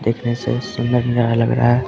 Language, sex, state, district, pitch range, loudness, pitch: Hindi, male, Bihar, Samastipur, 120-125 Hz, -18 LUFS, 120 Hz